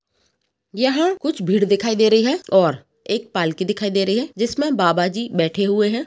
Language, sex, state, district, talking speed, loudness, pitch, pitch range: Hindi, female, Goa, North and South Goa, 190 wpm, -19 LUFS, 210 Hz, 190-235 Hz